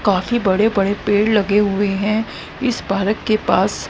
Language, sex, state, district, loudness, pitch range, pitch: Hindi, female, Haryana, Rohtak, -17 LUFS, 200-220 Hz, 210 Hz